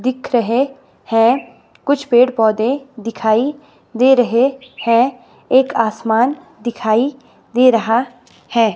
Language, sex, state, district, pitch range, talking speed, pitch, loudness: Hindi, female, Himachal Pradesh, Shimla, 230-265 Hz, 105 wpm, 245 Hz, -16 LUFS